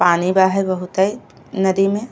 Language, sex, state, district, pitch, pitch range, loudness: Bhojpuri, female, Uttar Pradesh, Deoria, 190 Hz, 185-195 Hz, -17 LUFS